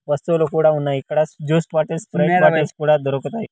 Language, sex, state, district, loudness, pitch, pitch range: Telugu, male, Andhra Pradesh, Sri Satya Sai, -18 LUFS, 155 Hz, 145-160 Hz